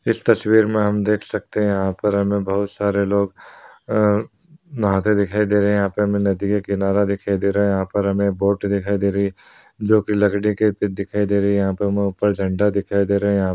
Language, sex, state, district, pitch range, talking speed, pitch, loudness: Hindi, male, Uttar Pradesh, Hamirpur, 100-105 Hz, 250 wpm, 100 Hz, -19 LUFS